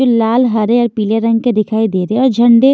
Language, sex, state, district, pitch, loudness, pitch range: Hindi, female, Maharashtra, Washim, 230 Hz, -13 LUFS, 220-240 Hz